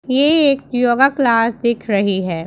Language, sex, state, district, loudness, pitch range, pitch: Hindi, female, Punjab, Pathankot, -15 LUFS, 215-270 Hz, 240 Hz